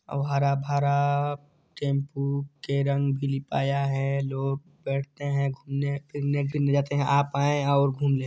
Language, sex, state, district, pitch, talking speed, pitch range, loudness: Hindi, male, Chhattisgarh, Sarguja, 140 Hz, 145 wpm, 140-145 Hz, -26 LUFS